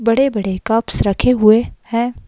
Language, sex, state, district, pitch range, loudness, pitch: Hindi, female, Himachal Pradesh, Shimla, 215-240 Hz, -15 LUFS, 230 Hz